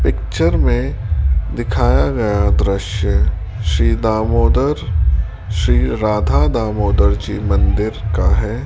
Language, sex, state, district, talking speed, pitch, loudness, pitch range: Hindi, male, Rajasthan, Jaipur, 95 wpm, 95 Hz, -16 LUFS, 70-105 Hz